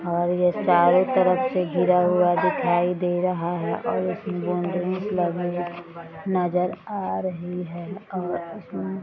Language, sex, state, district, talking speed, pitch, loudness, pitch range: Hindi, female, Bihar, East Champaran, 145 wpm, 180 Hz, -23 LUFS, 175-185 Hz